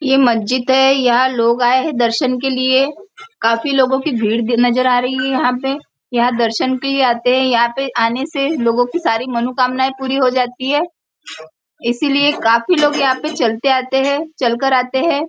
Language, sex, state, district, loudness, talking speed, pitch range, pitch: Hindi, female, Maharashtra, Nagpur, -15 LUFS, 200 wpm, 240-275 Hz, 260 Hz